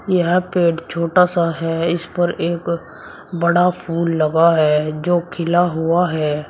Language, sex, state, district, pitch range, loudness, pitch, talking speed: Hindi, male, Uttar Pradesh, Shamli, 165-175 Hz, -17 LUFS, 170 Hz, 145 wpm